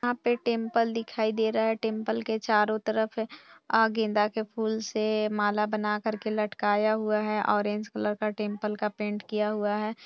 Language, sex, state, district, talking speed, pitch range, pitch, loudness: Hindi, female, Bihar, Purnia, 185 wpm, 210-220 Hz, 215 Hz, -28 LUFS